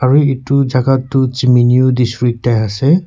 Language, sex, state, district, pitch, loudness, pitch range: Nagamese, male, Nagaland, Kohima, 130 Hz, -13 LUFS, 125-135 Hz